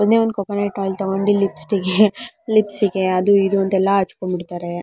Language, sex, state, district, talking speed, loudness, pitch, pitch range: Kannada, male, Karnataka, Mysore, 160 wpm, -18 LUFS, 200 Hz, 190-205 Hz